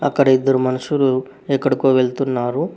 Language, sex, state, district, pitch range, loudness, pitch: Telugu, male, Telangana, Hyderabad, 130-135 Hz, -17 LUFS, 130 Hz